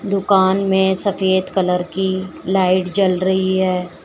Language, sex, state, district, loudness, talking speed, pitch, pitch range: Hindi, female, Uttar Pradesh, Shamli, -17 LUFS, 135 wpm, 190 Hz, 185-190 Hz